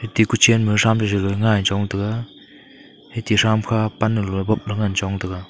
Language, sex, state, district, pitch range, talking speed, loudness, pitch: Wancho, male, Arunachal Pradesh, Longding, 100-110 Hz, 205 wpm, -19 LUFS, 105 Hz